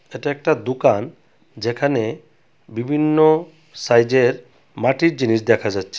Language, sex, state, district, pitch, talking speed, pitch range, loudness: Bengali, male, Tripura, West Tripura, 135 Hz, 100 wpm, 120-155 Hz, -18 LUFS